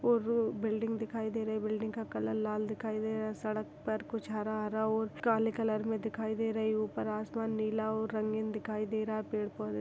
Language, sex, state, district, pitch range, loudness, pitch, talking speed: Hindi, female, Chhattisgarh, Balrampur, 215-220 Hz, -35 LUFS, 220 Hz, 245 wpm